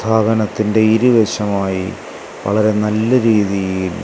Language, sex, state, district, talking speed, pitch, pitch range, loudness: Malayalam, male, Kerala, Kasaragod, 90 wpm, 105 Hz, 100-110 Hz, -15 LUFS